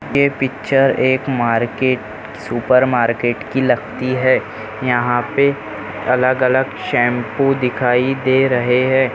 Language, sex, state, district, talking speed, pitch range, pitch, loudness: Hindi, male, Bihar, Jamui, 110 wpm, 120-130 Hz, 125 Hz, -16 LUFS